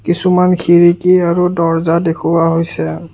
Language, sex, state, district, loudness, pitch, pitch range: Assamese, male, Assam, Kamrup Metropolitan, -12 LUFS, 170 Hz, 165-180 Hz